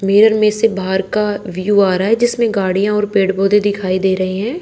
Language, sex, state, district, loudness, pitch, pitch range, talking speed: Hindi, female, Haryana, Charkhi Dadri, -15 LUFS, 200 Hz, 190-215 Hz, 235 wpm